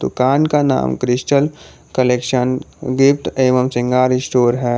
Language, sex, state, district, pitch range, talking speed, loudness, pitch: Hindi, male, Jharkhand, Palamu, 125-135 Hz, 125 wpm, -16 LUFS, 130 Hz